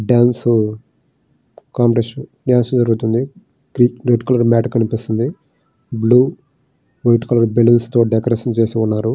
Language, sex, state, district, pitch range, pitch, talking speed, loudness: Telugu, male, Andhra Pradesh, Srikakulam, 115-125 Hz, 120 Hz, 90 wpm, -16 LUFS